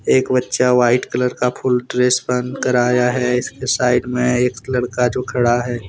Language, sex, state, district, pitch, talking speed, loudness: Hindi, male, Jharkhand, Deoghar, 125 Hz, 195 wpm, -17 LUFS